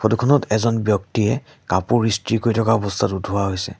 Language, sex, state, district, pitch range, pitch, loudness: Assamese, male, Assam, Sonitpur, 100-115 Hz, 110 Hz, -20 LUFS